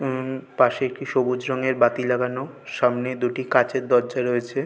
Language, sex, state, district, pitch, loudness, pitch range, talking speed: Bengali, male, West Bengal, North 24 Parganas, 130 Hz, -23 LUFS, 125-130 Hz, 155 wpm